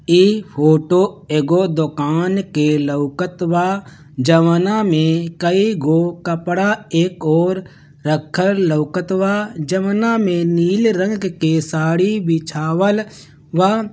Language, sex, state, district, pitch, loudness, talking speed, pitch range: Bhojpuri, male, Bihar, Gopalganj, 175 Hz, -17 LUFS, 105 wpm, 155-190 Hz